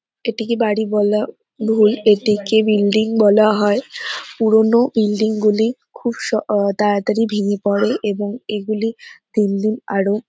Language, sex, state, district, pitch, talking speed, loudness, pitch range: Bengali, female, West Bengal, North 24 Parganas, 215 Hz, 120 wpm, -17 LUFS, 205-220 Hz